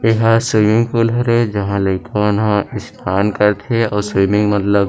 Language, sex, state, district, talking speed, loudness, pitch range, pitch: Chhattisgarhi, male, Chhattisgarh, Rajnandgaon, 170 wpm, -15 LUFS, 100-115 Hz, 105 Hz